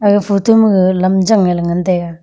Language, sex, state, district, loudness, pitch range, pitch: Wancho, female, Arunachal Pradesh, Longding, -12 LUFS, 180-205 Hz, 190 Hz